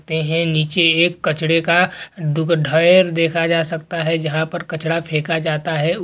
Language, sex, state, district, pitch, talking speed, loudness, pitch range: Hindi, male, Uttar Pradesh, Jalaun, 165 Hz, 200 wpm, -17 LUFS, 160-170 Hz